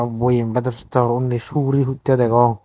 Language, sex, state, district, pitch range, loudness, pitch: Chakma, male, Tripura, Dhalai, 120-130 Hz, -19 LUFS, 125 Hz